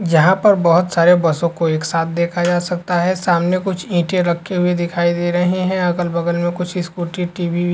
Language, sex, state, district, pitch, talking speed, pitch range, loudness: Hindi, male, Uttar Pradesh, Varanasi, 175 Hz, 215 wpm, 170-180 Hz, -17 LUFS